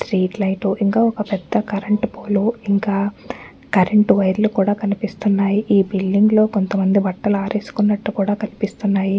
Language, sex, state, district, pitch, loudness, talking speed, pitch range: Telugu, female, Andhra Pradesh, Anantapur, 200 Hz, -18 LUFS, 135 wpm, 195-210 Hz